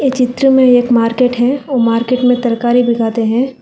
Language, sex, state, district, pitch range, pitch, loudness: Hindi, female, Telangana, Hyderabad, 235-255 Hz, 245 Hz, -12 LUFS